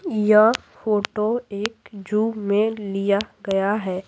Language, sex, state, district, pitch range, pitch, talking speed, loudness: Hindi, female, Bihar, Patna, 200-220 Hz, 210 Hz, 120 wpm, -21 LUFS